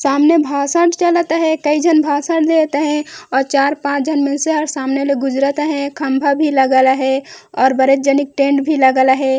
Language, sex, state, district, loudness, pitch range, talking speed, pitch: Chhattisgarhi, female, Chhattisgarh, Raigarh, -15 LUFS, 270-310 Hz, 175 wpm, 285 Hz